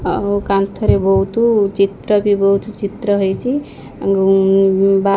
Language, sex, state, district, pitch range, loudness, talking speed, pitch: Odia, female, Odisha, Khordha, 195-205 Hz, -15 LUFS, 130 wpm, 195 Hz